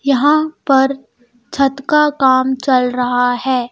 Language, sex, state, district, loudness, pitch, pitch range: Hindi, female, Madhya Pradesh, Bhopal, -14 LUFS, 265 Hz, 245-275 Hz